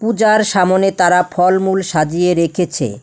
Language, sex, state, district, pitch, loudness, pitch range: Bengali, female, West Bengal, Alipurduar, 180 Hz, -14 LUFS, 175-190 Hz